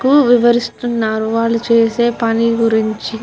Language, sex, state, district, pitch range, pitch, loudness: Telugu, female, Andhra Pradesh, Guntur, 225-240 Hz, 230 Hz, -14 LUFS